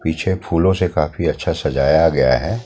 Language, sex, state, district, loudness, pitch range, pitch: Hindi, male, Delhi, New Delhi, -17 LUFS, 80-95 Hz, 90 Hz